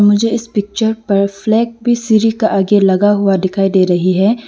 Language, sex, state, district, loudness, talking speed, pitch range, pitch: Hindi, female, Arunachal Pradesh, Lower Dibang Valley, -13 LUFS, 200 wpm, 195-225 Hz, 205 Hz